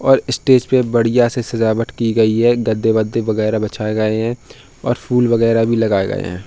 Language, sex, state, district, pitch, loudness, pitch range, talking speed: Hindi, male, Uttar Pradesh, Hamirpur, 115 Hz, -16 LUFS, 110-120 Hz, 205 wpm